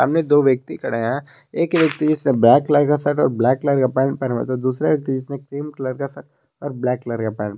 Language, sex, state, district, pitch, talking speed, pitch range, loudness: Hindi, male, Jharkhand, Garhwa, 135 Hz, 270 wpm, 130-145 Hz, -19 LUFS